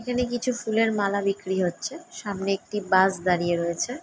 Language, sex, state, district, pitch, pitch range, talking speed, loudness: Bengali, female, West Bengal, Jalpaiguri, 200 Hz, 185-245 Hz, 180 wpm, -25 LUFS